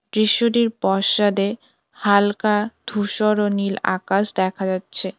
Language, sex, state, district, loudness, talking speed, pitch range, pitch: Bengali, female, West Bengal, Cooch Behar, -20 LUFS, 105 wpm, 195-215 Hz, 205 Hz